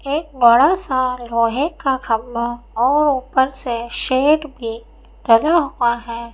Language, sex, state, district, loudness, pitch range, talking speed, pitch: Hindi, female, Madhya Pradesh, Bhopal, -18 LUFS, 235-275 Hz, 140 wpm, 255 Hz